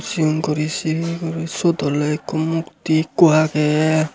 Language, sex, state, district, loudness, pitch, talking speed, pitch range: Chakma, male, Tripura, Unakoti, -19 LUFS, 155 Hz, 145 wpm, 155-165 Hz